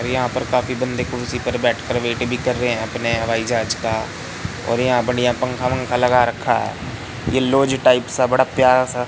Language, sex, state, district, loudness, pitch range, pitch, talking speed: Hindi, male, Madhya Pradesh, Katni, -19 LUFS, 120-125 Hz, 125 Hz, 200 wpm